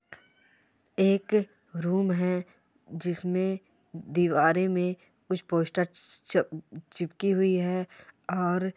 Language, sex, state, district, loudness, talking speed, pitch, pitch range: Hindi, female, Rajasthan, Churu, -28 LUFS, 80 wpm, 180 Hz, 175-190 Hz